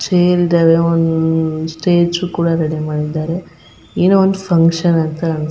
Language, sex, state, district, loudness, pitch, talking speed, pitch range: Kannada, female, Karnataka, Chamarajanagar, -15 LUFS, 165 Hz, 155 wpm, 160-175 Hz